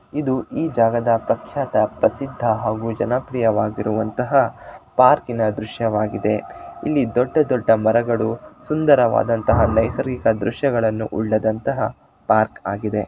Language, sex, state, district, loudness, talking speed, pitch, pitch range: Kannada, male, Karnataka, Shimoga, -20 LUFS, 85 wpm, 115 Hz, 110-125 Hz